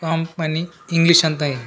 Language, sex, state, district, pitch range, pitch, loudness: Kannada, male, Karnataka, Raichur, 155-165 Hz, 165 Hz, -18 LUFS